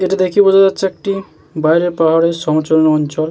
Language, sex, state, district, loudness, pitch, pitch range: Bengali, male, West Bengal, Jalpaiguri, -13 LUFS, 165 Hz, 155-190 Hz